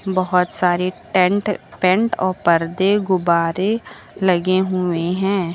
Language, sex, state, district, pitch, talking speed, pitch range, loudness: Hindi, female, Uttar Pradesh, Lucknow, 185 Hz, 110 wpm, 180-190 Hz, -18 LUFS